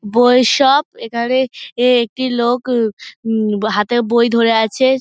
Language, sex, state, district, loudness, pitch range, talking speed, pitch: Bengali, female, West Bengal, Dakshin Dinajpur, -15 LUFS, 225-255 Hz, 145 wpm, 240 Hz